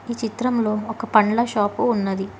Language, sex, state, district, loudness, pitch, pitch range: Telugu, female, Telangana, Hyderabad, -21 LUFS, 225 Hz, 210-235 Hz